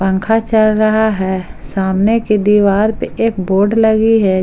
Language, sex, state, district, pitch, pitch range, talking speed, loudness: Hindi, female, Jharkhand, Palamu, 210 Hz, 190-220 Hz, 160 wpm, -13 LUFS